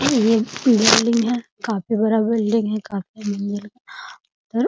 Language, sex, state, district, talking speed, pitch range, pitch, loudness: Hindi, female, Bihar, Muzaffarpur, 140 wpm, 210-235 Hz, 225 Hz, -19 LUFS